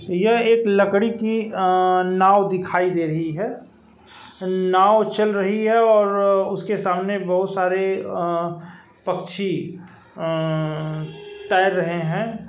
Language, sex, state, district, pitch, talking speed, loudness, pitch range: Hindi, male, Uttar Pradesh, Varanasi, 190 Hz, 125 wpm, -20 LUFS, 175-205 Hz